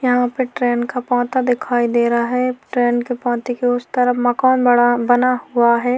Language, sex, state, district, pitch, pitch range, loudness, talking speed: Hindi, female, Chhattisgarh, Korba, 245 Hz, 240-250 Hz, -17 LUFS, 200 wpm